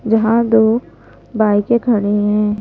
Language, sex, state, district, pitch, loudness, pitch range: Hindi, female, Madhya Pradesh, Bhopal, 215 Hz, -15 LUFS, 205-230 Hz